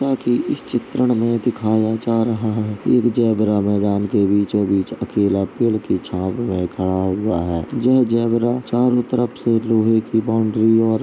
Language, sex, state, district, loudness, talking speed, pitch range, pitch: Hindi, male, Uttar Pradesh, Jalaun, -18 LUFS, 175 wpm, 100-120 Hz, 110 Hz